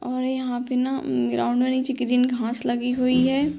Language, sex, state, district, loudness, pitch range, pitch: Hindi, female, Uttar Pradesh, Deoria, -23 LUFS, 245-260 Hz, 250 Hz